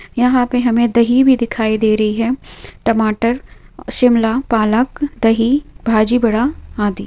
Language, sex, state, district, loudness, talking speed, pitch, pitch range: Hindi, female, Chhattisgarh, Bilaspur, -15 LUFS, 135 wpm, 235 Hz, 220-250 Hz